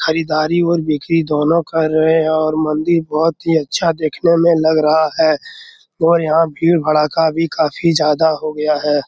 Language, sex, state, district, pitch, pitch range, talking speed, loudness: Hindi, male, Bihar, Araria, 160 Hz, 155-165 Hz, 180 wpm, -15 LUFS